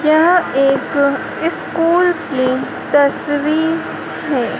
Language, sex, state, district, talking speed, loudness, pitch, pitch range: Hindi, female, Madhya Pradesh, Dhar, 80 wpm, -16 LUFS, 290 Hz, 280-330 Hz